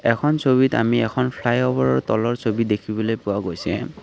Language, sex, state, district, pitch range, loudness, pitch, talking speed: Assamese, male, Assam, Kamrup Metropolitan, 105-125 Hz, -21 LUFS, 115 Hz, 150 wpm